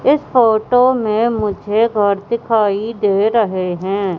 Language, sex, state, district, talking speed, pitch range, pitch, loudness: Hindi, female, Madhya Pradesh, Katni, 130 wpm, 200-230 Hz, 215 Hz, -15 LUFS